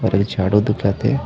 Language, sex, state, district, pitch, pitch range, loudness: Chhattisgarhi, male, Chhattisgarh, Raigarh, 105 Hz, 100-115 Hz, -18 LUFS